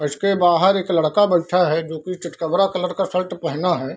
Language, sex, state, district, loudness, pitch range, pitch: Hindi, male, Bihar, Darbhanga, -19 LUFS, 165-185 Hz, 180 Hz